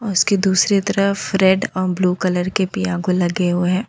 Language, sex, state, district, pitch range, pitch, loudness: Hindi, female, Jharkhand, Ranchi, 180-195 Hz, 190 Hz, -18 LUFS